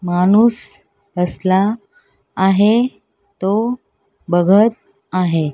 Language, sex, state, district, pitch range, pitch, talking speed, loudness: Marathi, female, Maharashtra, Mumbai Suburban, 180-225 Hz, 195 Hz, 65 wpm, -16 LUFS